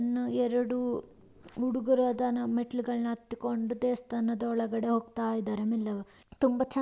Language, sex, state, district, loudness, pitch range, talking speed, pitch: Kannada, female, Karnataka, Mysore, -31 LUFS, 230-245 Hz, 125 wpm, 240 Hz